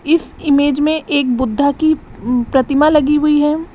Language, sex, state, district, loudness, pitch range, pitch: Hindi, female, Uttar Pradesh, Lalitpur, -14 LUFS, 280-305 Hz, 290 Hz